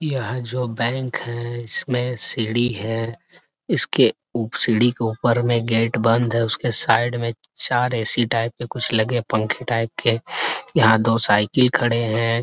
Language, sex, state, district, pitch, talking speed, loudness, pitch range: Hindi, male, Jharkhand, Sahebganj, 115 Hz, 160 wpm, -20 LUFS, 115-120 Hz